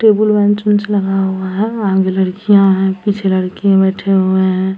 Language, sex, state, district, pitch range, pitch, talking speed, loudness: Hindi, female, Bihar, Samastipur, 190-205 Hz, 195 Hz, 190 wpm, -13 LUFS